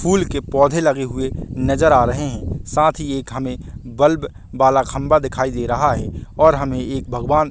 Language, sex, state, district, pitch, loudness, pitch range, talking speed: Hindi, male, Chhattisgarh, Bastar, 135 Hz, -18 LUFS, 125-150 Hz, 190 wpm